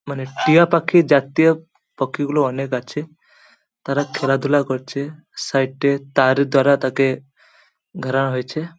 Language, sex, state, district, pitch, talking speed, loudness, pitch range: Bengali, male, West Bengal, Paschim Medinipur, 140 Hz, 115 wpm, -19 LUFS, 135-150 Hz